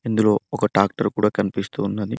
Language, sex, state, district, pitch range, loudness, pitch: Telugu, male, Telangana, Mahabubabad, 100-110 Hz, -21 LUFS, 105 Hz